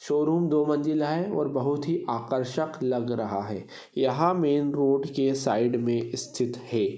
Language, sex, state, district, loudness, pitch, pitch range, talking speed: Hindi, male, Maharashtra, Solapur, -26 LUFS, 135 Hz, 120-150 Hz, 165 wpm